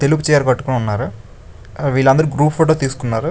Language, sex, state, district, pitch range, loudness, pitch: Telugu, male, Andhra Pradesh, Chittoor, 110-150 Hz, -16 LUFS, 135 Hz